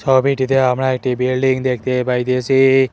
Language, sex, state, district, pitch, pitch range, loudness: Bengali, male, West Bengal, Cooch Behar, 130 Hz, 125-135 Hz, -16 LUFS